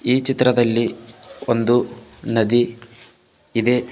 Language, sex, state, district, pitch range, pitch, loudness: Kannada, male, Karnataka, Bidar, 115-125 Hz, 120 Hz, -19 LUFS